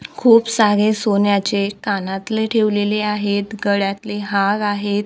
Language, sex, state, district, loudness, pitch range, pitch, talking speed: Marathi, female, Maharashtra, Gondia, -18 LUFS, 200-215 Hz, 205 Hz, 105 wpm